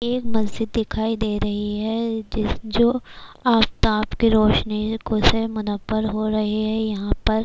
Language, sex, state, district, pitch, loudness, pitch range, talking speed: Urdu, female, Bihar, Kishanganj, 220 Hz, -22 LUFS, 215-225 Hz, 145 wpm